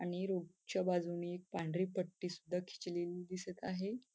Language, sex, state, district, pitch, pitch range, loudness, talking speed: Marathi, female, Maharashtra, Nagpur, 180 Hz, 175-185 Hz, -41 LUFS, 160 wpm